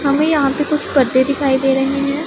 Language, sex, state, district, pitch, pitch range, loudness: Hindi, female, Punjab, Pathankot, 280 Hz, 270-295 Hz, -15 LUFS